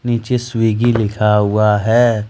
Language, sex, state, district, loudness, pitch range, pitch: Hindi, male, Jharkhand, Ranchi, -15 LUFS, 105-120 Hz, 110 Hz